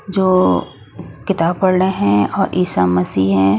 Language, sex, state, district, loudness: Hindi, female, Odisha, Nuapada, -15 LUFS